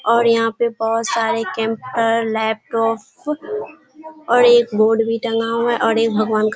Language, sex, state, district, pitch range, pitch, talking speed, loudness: Hindi, female, Bihar, Kishanganj, 225-235 Hz, 230 Hz, 165 wpm, -18 LUFS